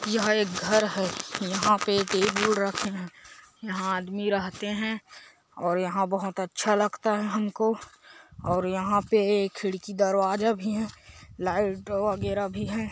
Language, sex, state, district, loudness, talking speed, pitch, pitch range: Hindi, male, Chhattisgarh, Korba, -27 LUFS, 145 wpm, 205 Hz, 195-215 Hz